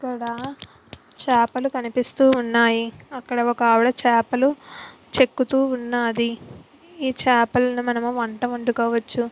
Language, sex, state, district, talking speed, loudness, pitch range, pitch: Telugu, female, Andhra Pradesh, Visakhapatnam, 90 wpm, -21 LUFS, 235-255 Hz, 245 Hz